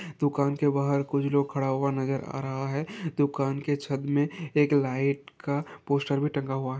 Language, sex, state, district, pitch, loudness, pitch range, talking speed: Hindi, male, Chhattisgarh, Sarguja, 140 Hz, -28 LUFS, 135-145 Hz, 195 wpm